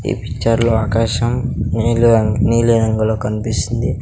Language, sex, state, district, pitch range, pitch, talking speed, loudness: Telugu, male, Andhra Pradesh, Sri Satya Sai, 110-115 Hz, 115 Hz, 120 wpm, -16 LUFS